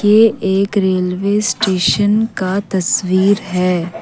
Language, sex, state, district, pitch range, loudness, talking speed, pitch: Hindi, female, Assam, Kamrup Metropolitan, 185-205 Hz, -15 LUFS, 105 wpm, 195 Hz